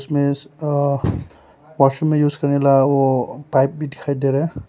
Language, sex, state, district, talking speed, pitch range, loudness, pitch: Hindi, male, Arunachal Pradesh, Papum Pare, 155 wpm, 135-145 Hz, -18 LUFS, 140 Hz